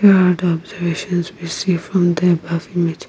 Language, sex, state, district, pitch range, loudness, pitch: English, female, Nagaland, Kohima, 170-180 Hz, -18 LUFS, 175 Hz